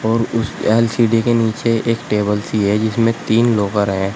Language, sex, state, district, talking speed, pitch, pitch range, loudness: Hindi, male, Uttar Pradesh, Shamli, 185 wpm, 115 Hz, 105-115 Hz, -16 LUFS